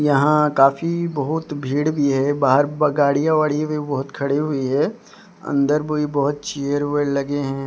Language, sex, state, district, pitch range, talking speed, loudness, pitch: Hindi, male, Odisha, Sambalpur, 140-150 Hz, 165 wpm, -20 LUFS, 145 Hz